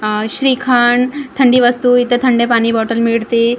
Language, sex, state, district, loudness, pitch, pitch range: Marathi, female, Maharashtra, Gondia, -13 LUFS, 245 Hz, 230-250 Hz